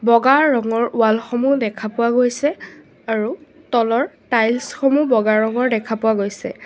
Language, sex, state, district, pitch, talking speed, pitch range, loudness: Assamese, female, Assam, Sonitpur, 235 Hz, 135 wpm, 225-270 Hz, -18 LUFS